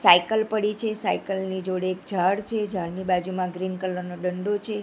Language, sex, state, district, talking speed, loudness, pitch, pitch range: Gujarati, female, Gujarat, Gandhinagar, 200 wpm, -26 LUFS, 185 Hz, 180-210 Hz